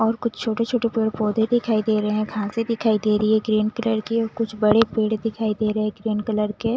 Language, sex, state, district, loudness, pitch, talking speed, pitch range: Hindi, female, Chandigarh, Chandigarh, -22 LUFS, 220 Hz, 255 wpm, 215-230 Hz